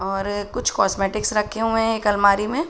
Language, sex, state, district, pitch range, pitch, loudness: Hindi, female, Uttar Pradesh, Budaun, 200-225 Hz, 210 Hz, -21 LUFS